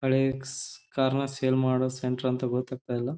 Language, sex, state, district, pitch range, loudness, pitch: Kannada, male, Karnataka, Belgaum, 125-135 Hz, -28 LUFS, 130 Hz